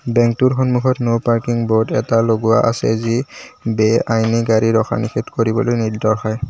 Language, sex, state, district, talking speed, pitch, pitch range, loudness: Assamese, male, Assam, Kamrup Metropolitan, 140 wpm, 115 Hz, 110-120 Hz, -16 LUFS